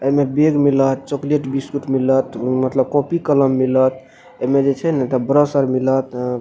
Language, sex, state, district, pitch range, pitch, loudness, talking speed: Maithili, male, Bihar, Madhepura, 130-145 Hz, 135 Hz, -17 LUFS, 205 wpm